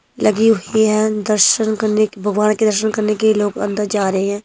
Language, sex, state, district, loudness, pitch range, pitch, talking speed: Hindi, female, Himachal Pradesh, Shimla, -16 LUFS, 205-215 Hz, 215 Hz, 215 wpm